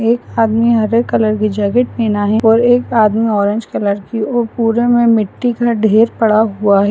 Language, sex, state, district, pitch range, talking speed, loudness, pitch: Hindi, female, Maharashtra, Solapur, 215-235 Hz, 200 wpm, -13 LUFS, 225 Hz